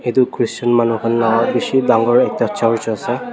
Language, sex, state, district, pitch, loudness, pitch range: Nagamese, male, Nagaland, Dimapur, 115 Hz, -16 LUFS, 115-120 Hz